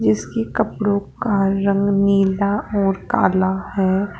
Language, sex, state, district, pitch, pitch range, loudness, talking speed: Hindi, female, Rajasthan, Jaipur, 200 Hz, 190-200 Hz, -19 LUFS, 115 wpm